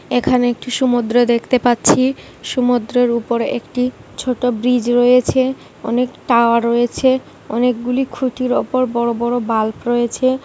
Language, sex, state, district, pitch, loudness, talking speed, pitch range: Bengali, female, West Bengal, Kolkata, 245 Hz, -16 LUFS, 125 wpm, 235-255 Hz